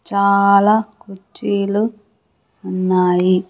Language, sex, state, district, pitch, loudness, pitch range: Telugu, female, Andhra Pradesh, Sri Satya Sai, 200 Hz, -16 LUFS, 185-210 Hz